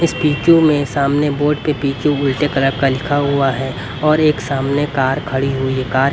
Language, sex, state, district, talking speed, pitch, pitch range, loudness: Hindi, male, Haryana, Rohtak, 215 wpm, 140 Hz, 135-150 Hz, -16 LUFS